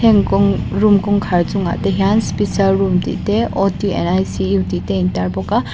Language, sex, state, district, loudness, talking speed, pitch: Mizo, female, Mizoram, Aizawl, -16 LUFS, 165 wpm, 185 Hz